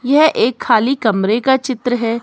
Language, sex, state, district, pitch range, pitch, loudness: Hindi, female, Himachal Pradesh, Shimla, 225-265 Hz, 245 Hz, -15 LUFS